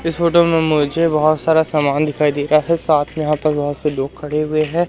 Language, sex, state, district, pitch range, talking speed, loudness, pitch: Hindi, male, Madhya Pradesh, Umaria, 150-160 Hz, 260 wpm, -16 LUFS, 155 Hz